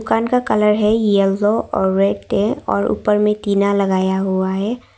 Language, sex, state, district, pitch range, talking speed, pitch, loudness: Hindi, female, Arunachal Pradesh, Longding, 190-210 Hz, 170 wpm, 200 Hz, -17 LUFS